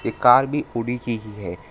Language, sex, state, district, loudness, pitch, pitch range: Hindi, male, Assam, Hailakandi, -21 LUFS, 115 Hz, 105-125 Hz